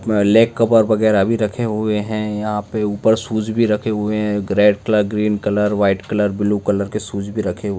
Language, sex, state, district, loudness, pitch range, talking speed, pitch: Hindi, male, Bihar, Darbhanga, -17 LUFS, 105-110 Hz, 210 wpm, 105 Hz